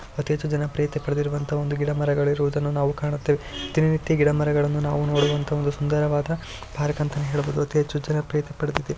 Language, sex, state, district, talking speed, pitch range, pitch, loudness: Kannada, male, Karnataka, Shimoga, 140 wpm, 145-150 Hz, 145 Hz, -24 LUFS